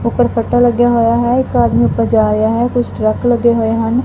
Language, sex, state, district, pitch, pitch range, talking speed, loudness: Punjabi, female, Punjab, Fazilka, 230 Hz, 215-240 Hz, 235 wpm, -13 LUFS